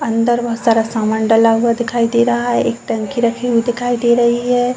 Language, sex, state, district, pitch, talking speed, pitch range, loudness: Hindi, female, Uttar Pradesh, Jalaun, 235 Hz, 225 wpm, 225-240 Hz, -15 LUFS